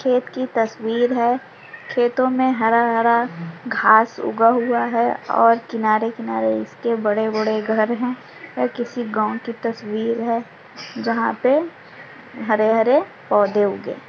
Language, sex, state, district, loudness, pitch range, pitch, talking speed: Hindi, female, Bihar, Sitamarhi, -19 LUFS, 220-245 Hz, 230 Hz, 130 wpm